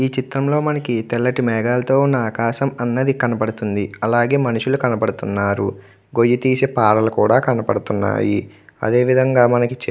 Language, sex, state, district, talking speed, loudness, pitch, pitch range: Telugu, male, Andhra Pradesh, Chittoor, 95 wpm, -18 LUFS, 120 Hz, 110-130 Hz